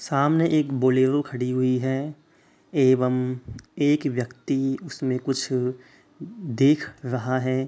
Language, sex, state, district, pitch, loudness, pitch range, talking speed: Hindi, male, Uttar Pradesh, Hamirpur, 130 Hz, -24 LUFS, 125-145 Hz, 110 wpm